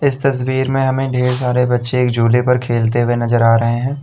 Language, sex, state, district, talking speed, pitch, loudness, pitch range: Hindi, male, Uttar Pradesh, Lalitpur, 225 wpm, 125 Hz, -15 LUFS, 120-130 Hz